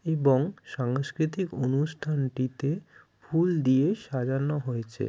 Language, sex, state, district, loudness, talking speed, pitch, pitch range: Bengali, male, West Bengal, Jalpaiguri, -28 LUFS, 80 wpm, 140 Hz, 130-160 Hz